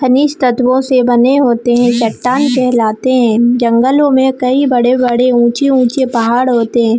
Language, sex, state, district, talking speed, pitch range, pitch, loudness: Hindi, female, Chhattisgarh, Bilaspur, 145 wpm, 240-260 Hz, 250 Hz, -11 LUFS